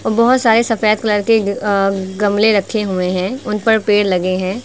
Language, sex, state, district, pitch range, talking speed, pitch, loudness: Hindi, female, Uttar Pradesh, Lucknow, 195-225 Hz, 195 wpm, 210 Hz, -15 LUFS